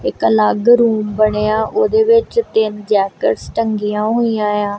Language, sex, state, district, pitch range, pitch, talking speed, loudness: Punjabi, female, Punjab, Kapurthala, 210-235 Hz, 215 Hz, 140 wpm, -15 LUFS